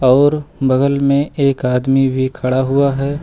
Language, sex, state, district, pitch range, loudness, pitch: Hindi, male, Uttar Pradesh, Lucknow, 130-140 Hz, -15 LUFS, 135 Hz